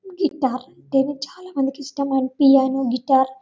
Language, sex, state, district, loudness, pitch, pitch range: Telugu, female, Telangana, Karimnagar, -20 LUFS, 270 Hz, 265-285 Hz